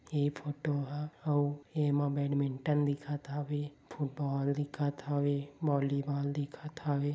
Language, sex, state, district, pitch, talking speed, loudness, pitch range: Chhattisgarhi, male, Chhattisgarh, Bilaspur, 145 Hz, 110 wpm, -34 LUFS, 140-145 Hz